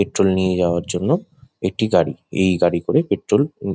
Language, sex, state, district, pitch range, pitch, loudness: Bengali, male, West Bengal, Jhargram, 90-100 Hz, 95 Hz, -19 LUFS